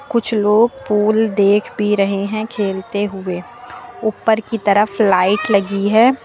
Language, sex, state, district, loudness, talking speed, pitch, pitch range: Hindi, female, Uttar Pradesh, Lucknow, -16 LUFS, 145 wpm, 210 Hz, 200-225 Hz